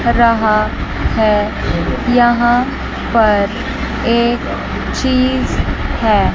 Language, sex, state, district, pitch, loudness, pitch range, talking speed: Hindi, female, Chandigarh, Chandigarh, 235 Hz, -15 LUFS, 220-245 Hz, 65 wpm